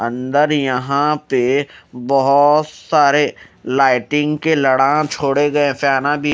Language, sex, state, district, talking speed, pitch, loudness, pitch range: Hindi, male, Haryana, Rohtak, 115 wpm, 140 Hz, -15 LUFS, 135-150 Hz